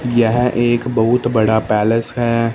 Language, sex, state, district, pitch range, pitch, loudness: Hindi, male, Punjab, Fazilka, 110-120 Hz, 120 Hz, -16 LUFS